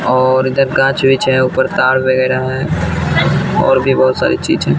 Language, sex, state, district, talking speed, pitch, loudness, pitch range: Hindi, male, Bihar, Katihar, 185 wpm, 130 Hz, -13 LUFS, 130-135 Hz